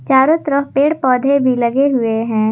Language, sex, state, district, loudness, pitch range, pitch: Hindi, female, Jharkhand, Garhwa, -14 LUFS, 235-280 Hz, 265 Hz